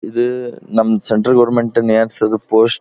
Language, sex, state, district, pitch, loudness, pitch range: Kannada, male, Karnataka, Dharwad, 115 Hz, -15 LUFS, 110-120 Hz